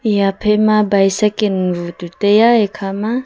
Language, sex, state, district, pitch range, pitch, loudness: Wancho, female, Arunachal Pradesh, Longding, 195-215 Hz, 205 Hz, -15 LUFS